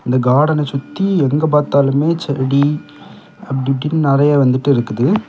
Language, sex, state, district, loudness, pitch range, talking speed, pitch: Tamil, male, Tamil Nadu, Kanyakumari, -15 LUFS, 135-150 Hz, 125 wpm, 140 Hz